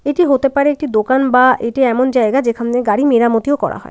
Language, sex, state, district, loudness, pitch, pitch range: Bengali, female, West Bengal, Dakshin Dinajpur, -14 LUFS, 255 Hz, 235-280 Hz